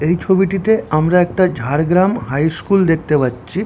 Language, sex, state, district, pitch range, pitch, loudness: Bengali, male, West Bengal, Jhargram, 150-190 Hz, 175 Hz, -15 LUFS